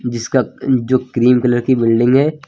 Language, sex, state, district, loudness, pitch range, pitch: Hindi, male, Uttar Pradesh, Lucknow, -15 LUFS, 120-130 Hz, 125 Hz